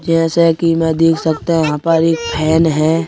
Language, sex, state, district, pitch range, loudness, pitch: Hindi, male, Madhya Pradesh, Bhopal, 160-165 Hz, -14 LUFS, 165 Hz